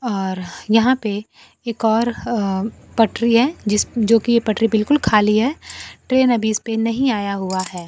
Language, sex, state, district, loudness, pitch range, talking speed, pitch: Hindi, female, Bihar, Kaimur, -18 LUFS, 210-235 Hz, 160 wpm, 225 Hz